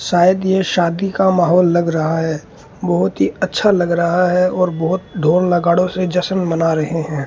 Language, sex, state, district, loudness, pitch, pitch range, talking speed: Hindi, male, Rajasthan, Bikaner, -16 LUFS, 175 Hz, 165-185 Hz, 190 wpm